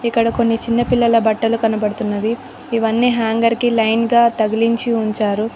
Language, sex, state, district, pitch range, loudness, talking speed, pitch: Telugu, female, Telangana, Mahabubabad, 220-235 Hz, -16 LUFS, 140 wpm, 230 Hz